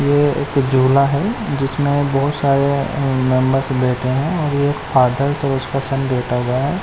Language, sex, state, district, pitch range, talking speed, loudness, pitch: Hindi, male, Chandigarh, Chandigarh, 130-140 Hz, 165 wpm, -17 LUFS, 140 Hz